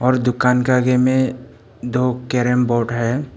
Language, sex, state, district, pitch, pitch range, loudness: Hindi, male, Arunachal Pradesh, Papum Pare, 125 Hz, 120-130 Hz, -18 LUFS